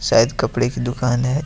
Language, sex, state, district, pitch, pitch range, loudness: Hindi, male, Jharkhand, Deoghar, 125 Hz, 120-130 Hz, -19 LUFS